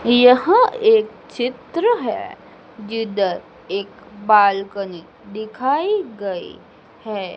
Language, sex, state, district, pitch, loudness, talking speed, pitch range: Hindi, female, Madhya Pradesh, Dhar, 225 Hz, -18 LUFS, 80 wpm, 200-280 Hz